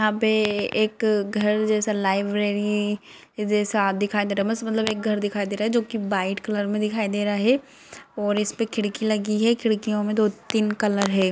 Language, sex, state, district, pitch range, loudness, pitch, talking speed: Hindi, female, Bihar, Purnia, 205-220 Hz, -23 LUFS, 210 Hz, 205 wpm